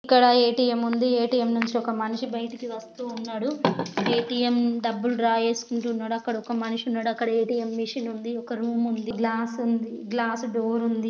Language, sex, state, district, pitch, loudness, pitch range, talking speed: Telugu, female, Andhra Pradesh, Srikakulam, 235 Hz, -25 LUFS, 230-240 Hz, 180 wpm